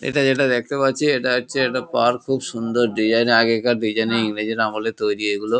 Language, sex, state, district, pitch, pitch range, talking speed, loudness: Bengali, male, West Bengal, Kolkata, 120 Hz, 110-130 Hz, 235 wpm, -19 LUFS